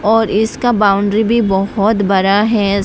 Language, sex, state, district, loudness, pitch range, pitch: Hindi, female, Tripura, West Tripura, -13 LUFS, 200-220 Hz, 205 Hz